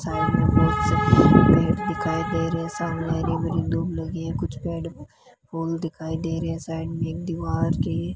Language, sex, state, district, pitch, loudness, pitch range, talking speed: Hindi, female, Rajasthan, Bikaner, 165 Hz, -23 LUFS, 160-165 Hz, 205 wpm